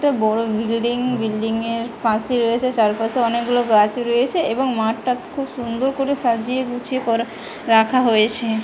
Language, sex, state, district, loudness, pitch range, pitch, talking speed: Bengali, female, West Bengal, Malda, -19 LUFS, 225-250 Hz, 235 Hz, 145 wpm